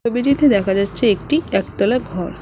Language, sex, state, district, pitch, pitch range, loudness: Bengali, female, West Bengal, Cooch Behar, 215 Hz, 195-260 Hz, -17 LUFS